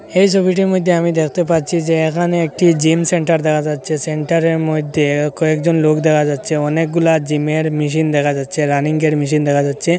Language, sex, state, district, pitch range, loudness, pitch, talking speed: Bengali, male, Assam, Hailakandi, 150-170 Hz, -15 LUFS, 155 Hz, 185 wpm